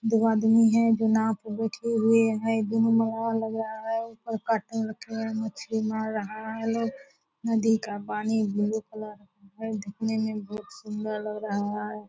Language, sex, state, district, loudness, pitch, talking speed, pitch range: Hindi, female, Bihar, Purnia, -27 LUFS, 220 Hz, 170 wpm, 215-225 Hz